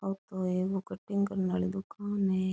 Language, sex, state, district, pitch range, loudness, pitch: Rajasthani, female, Rajasthan, Nagaur, 185-195 Hz, -32 LUFS, 190 Hz